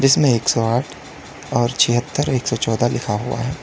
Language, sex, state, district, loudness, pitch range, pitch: Hindi, male, Uttar Pradesh, Lalitpur, -19 LUFS, 115-135 Hz, 120 Hz